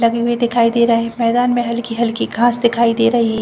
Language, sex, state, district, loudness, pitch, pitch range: Hindi, female, Jharkhand, Jamtara, -16 LUFS, 235 Hz, 230-240 Hz